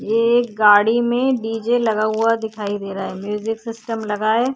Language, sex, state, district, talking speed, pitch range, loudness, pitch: Hindi, female, Uttar Pradesh, Hamirpur, 195 wpm, 210-230 Hz, -19 LUFS, 225 Hz